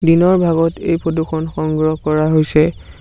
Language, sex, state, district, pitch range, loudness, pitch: Assamese, male, Assam, Sonitpur, 155-165 Hz, -16 LUFS, 160 Hz